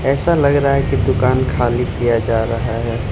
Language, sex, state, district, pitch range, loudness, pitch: Hindi, male, Arunachal Pradesh, Lower Dibang Valley, 115-135 Hz, -16 LUFS, 120 Hz